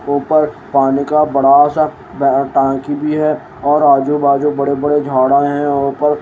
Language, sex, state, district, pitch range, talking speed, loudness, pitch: Hindi, male, Haryana, Rohtak, 140-150 Hz, 165 wpm, -14 LUFS, 145 Hz